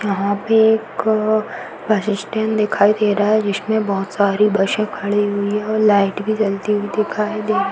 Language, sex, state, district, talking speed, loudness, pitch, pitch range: Hindi, female, Uttar Pradesh, Varanasi, 185 wpm, -18 LUFS, 210 Hz, 200-215 Hz